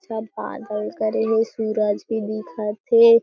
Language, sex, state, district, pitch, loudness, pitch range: Chhattisgarhi, female, Chhattisgarh, Jashpur, 220 Hz, -22 LUFS, 215-225 Hz